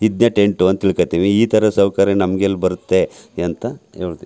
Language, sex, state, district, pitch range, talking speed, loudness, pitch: Kannada, male, Karnataka, Chamarajanagar, 95-105 Hz, 155 wpm, -16 LUFS, 100 Hz